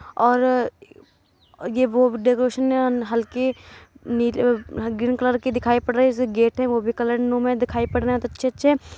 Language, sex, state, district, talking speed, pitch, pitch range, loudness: Hindi, male, Uttar Pradesh, Jalaun, 180 wpm, 245 Hz, 240-255 Hz, -21 LUFS